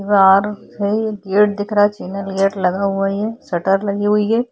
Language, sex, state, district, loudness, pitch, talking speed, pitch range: Hindi, female, Chhattisgarh, Korba, -17 LUFS, 200 Hz, 170 wpm, 195-210 Hz